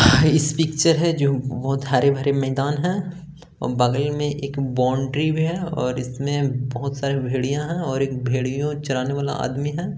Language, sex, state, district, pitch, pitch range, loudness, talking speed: Hindi, male, Bihar, Gaya, 140 Hz, 130-155 Hz, -22 LUFS, 170 wpm